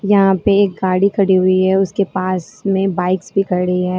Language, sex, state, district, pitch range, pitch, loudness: Hindi, female, Uttar Pradesh, Lalitpur, 185-195 Hz, 190 Hz, -15 LUFS